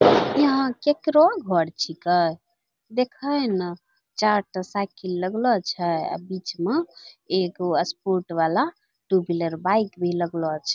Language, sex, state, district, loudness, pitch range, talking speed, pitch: Angika, female, Bihar, Bhagalpur, -23 LUFS, 175-260 Hz, 135 wpm, 185 Hz